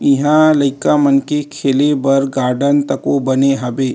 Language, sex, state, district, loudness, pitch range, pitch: Chhattisgarhi, male, Chhattisgarh, Rajnandgaon, -14 LUFS, 135-145 Hz, 140 Hz